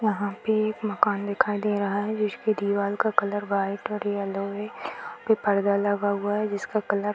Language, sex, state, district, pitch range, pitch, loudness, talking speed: Hindi, female, Bihar, Jahanabad, 200-210 Hz, 205 Hz, -26 LUFS, 210 wpm